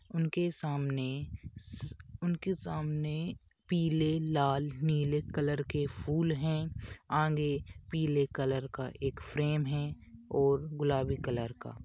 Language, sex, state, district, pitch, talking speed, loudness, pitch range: Hindi, male, Bihar, Jamui, 145 Hz, 115 wpm, -34 LUFS, 135-155 Hz